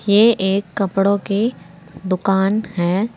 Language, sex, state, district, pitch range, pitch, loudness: Hindi, female, Uttar Pradesh, Saharanpur, 185-205 Hz, 195 Hz, -18 LUFS